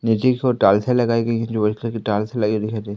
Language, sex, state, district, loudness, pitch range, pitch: Hindi, male, Madhya Pradesh, Katni, -19 LUFS, 105-115 Hz, 110 Hz